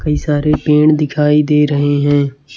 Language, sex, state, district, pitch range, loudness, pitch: Hindi, male, Chhattisgarh, Raipur, 145-150 Hz, -13 LUFS, 150 Hz